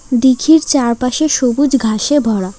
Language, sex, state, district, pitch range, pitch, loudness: Bengali, female, West Bengal, Alipurduar, 235-290 Hz, 255 Hz, -13 LUFS